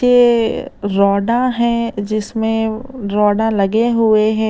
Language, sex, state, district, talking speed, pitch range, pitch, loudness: Hindi, female, Uttar Pradesh, Lalitpur, 105 wpm, 210-235 Hz, 225 Hz, -16 LUFS